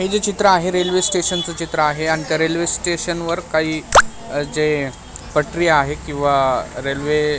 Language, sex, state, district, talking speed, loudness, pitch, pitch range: Marathi, male, Maharashtra, Mumbai Suburban, 160 wpm, -18 LUFS, 160 Hz, 145-175 Hz